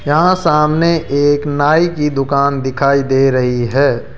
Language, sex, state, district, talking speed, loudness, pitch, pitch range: Hindi, male, Rajasthan, Jaipur, 145 wpm, -13 LUFS, 145 Hz, 135-150 Hz